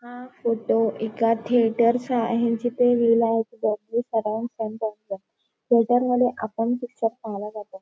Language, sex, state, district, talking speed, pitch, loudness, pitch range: Marathi, female, Maharashtra, Nagpur, 100 wpm, 230 Hz, -23 LUFS, 220-240 Hz